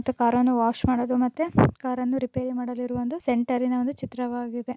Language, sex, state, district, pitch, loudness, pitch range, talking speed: Kannada, female, Karnataka, Bijapur, 250 Hz, -25 LUFS, 245-255 Hz, 175 wpm